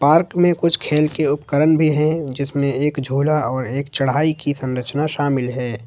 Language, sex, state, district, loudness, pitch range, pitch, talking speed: Hindi, male, Jharkhand, Ranchi, -19 LUFS, 135-155 Hz, 145 Hz, 185 wpm